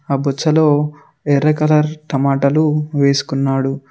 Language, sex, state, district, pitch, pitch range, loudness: Telugu, male, Telangana, Mahabubabad, 145 Hz, 140-155 Hz, -16 LUFS